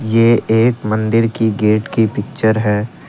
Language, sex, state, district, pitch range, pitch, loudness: Hindi, male, Assam, Kamrup Metropolitan, 110-115 Hz, 110 Hz, -15 LUFS